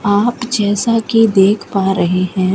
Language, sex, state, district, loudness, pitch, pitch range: Hindi, female, Rajasthan, Bikaner, -14 LUFS, 205 Hz, 190-225 Hz